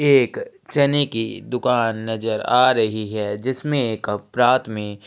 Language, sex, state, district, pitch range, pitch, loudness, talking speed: Hindi, male, Chhattisgarh, Sukma, 110-135 Hz, 120 Hz, -20 LUFS, 140 wpm